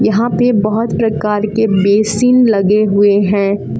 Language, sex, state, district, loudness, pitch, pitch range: Hindi, female, Jharkhand, Palamu, -12 LUFS, 210 Hz, 200-225 Hz